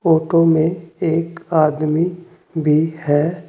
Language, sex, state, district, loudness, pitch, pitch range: Hindi, male, Uttar Pradesh, Saharanpur, -17 LUFS, 165 Hz, 155-170 Hz